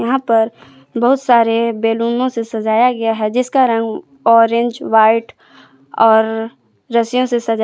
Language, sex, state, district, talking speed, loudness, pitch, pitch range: Hindi, female, Jharkhand, Palamu, 135 wpm, -15 LUFS, 230 Hz, 225-240 Hz